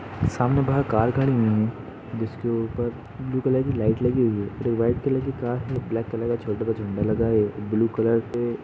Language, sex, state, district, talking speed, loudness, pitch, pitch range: Hindi, male, Uttar Pradesh, Budaun, 220 wpm, -24 LUFS, 115 Hz, 110-125 Hz